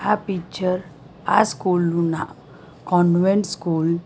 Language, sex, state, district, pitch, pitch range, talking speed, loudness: Gujarati, female, Gujarat, Valsad, 180 Hz, 170-195 Hz, 120 wpm, -21 LUFS